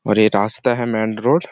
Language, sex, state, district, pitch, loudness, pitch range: Hindi, male, Chhattisgarh, Sarguja, 110 Hz, -17 LUFS, 105-120 Hz